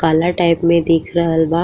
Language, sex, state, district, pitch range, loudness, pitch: Bhojpuri, female, Uttar Pradesh, Ghazipur, 165-170 Hz, -15 LUFS, 165 Hz